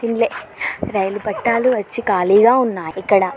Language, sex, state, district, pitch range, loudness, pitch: Telugu, female, Andhra Pradesh, Srikakulam, 195-235 Hz, -17 LUFS, 210 Hz